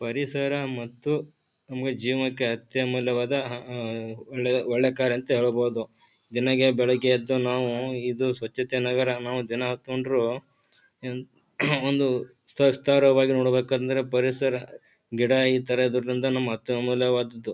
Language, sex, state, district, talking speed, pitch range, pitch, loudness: Kannada, male, Karnataka, Bijapur, 105 wpm, 125-130 Hz, 125 Hz, -25 LUFS